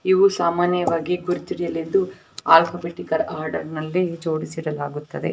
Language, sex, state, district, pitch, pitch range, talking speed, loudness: Kannada, female, Karnataka, Belgaum, 170 Hz, 160-180 Hz, 90 wpm, -22 LUFS